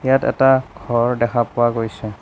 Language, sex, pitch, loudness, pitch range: Assamese, male, 120 Hz, -18 LUFS, 115-130 Hz